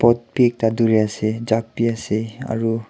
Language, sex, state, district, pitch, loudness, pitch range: Nagamese, male, Nagaland, Kohima, 115 Hz, -20 LUFS, 110-115 Hz